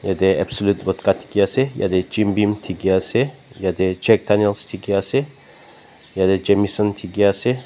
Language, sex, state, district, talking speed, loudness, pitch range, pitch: Nagamese, male, Nagaland, Dimapur, 150 wpm, -19 LUFS, 95-110 Hz, 100 Hz